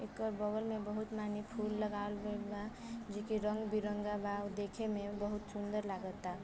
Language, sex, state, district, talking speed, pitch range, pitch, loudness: Bhojpuri, female, Uttar Pradesh, Varanasi, 185 wpm, 205-215 Hz, 210 Hz, -40 LUFS